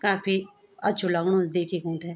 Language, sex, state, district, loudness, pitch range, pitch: Garhwali, female, Uttarakhand, Tehri Garhwal, -26 LUFS, 175-200 Hz, 185 Hz